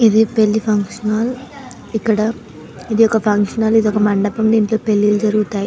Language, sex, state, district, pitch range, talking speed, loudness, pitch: Telugu, female, Telangana, Nalgonda, 210-225 Hz, 150 wpm, -16 LUFS, 220 Hz